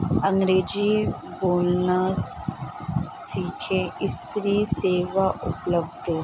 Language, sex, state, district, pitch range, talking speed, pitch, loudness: Hindi, female, Bihar, Sitamarhi, 175-195 Hz, 75 wpm, 185 Hz, -24 LUFS